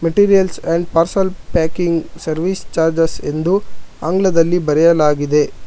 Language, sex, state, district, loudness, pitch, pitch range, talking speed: Kannada, male, Karnataka, Bangalore, -16 LUFS, 165 Hz, 160-185 Hz, 105 wpm